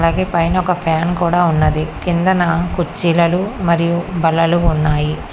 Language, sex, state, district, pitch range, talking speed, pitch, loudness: Telugu, female, Telangana, Hyderabad, 165-175 Hz, 125 wpm, 170 Hz, -16 LUFS